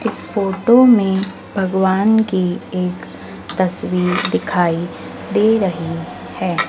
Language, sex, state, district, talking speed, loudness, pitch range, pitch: Hindi, female, Madhya Pradesh, Dhar, 100 wpm, -17 LUFS, 175-200 Hz, 185 Hz